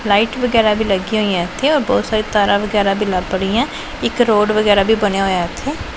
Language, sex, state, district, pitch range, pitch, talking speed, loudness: Punjabi, female, Punjab, Pathankot, 195-220 Hz, 210 Hz, 210 wpm, -16 LUFS